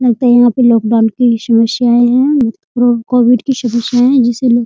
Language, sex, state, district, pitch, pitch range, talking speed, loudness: Hindi, female, Bihar, Muzaffarpur, 240 Hz, 235-250 Hz, 195 wpm, -11 LUFS